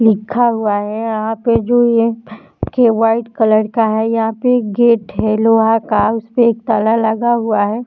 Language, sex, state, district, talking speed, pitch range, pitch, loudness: Hindi, female, Jharkhand, Jamtara, 185 wpm, 220-235 Hz, 225 Hz, -14 LUFS